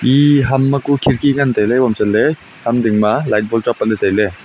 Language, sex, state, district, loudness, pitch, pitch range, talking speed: Wancho, male, Arunachal Pradesh, Longding, -14 LUFS, 120 Hz, 105-140 Hz, 230 wpm